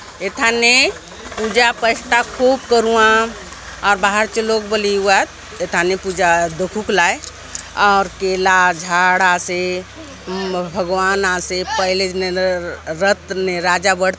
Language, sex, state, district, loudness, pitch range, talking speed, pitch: Halbi, female, Chhattisgarh, Bastar, -16 LUFS, 185-220 Hz, 125 wpm, 190 Hz